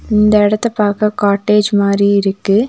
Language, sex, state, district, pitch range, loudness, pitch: Tamil, female, Tamil Nadu, Nilgiris, 200-210 Hz, -13 LUFS, 210 Hz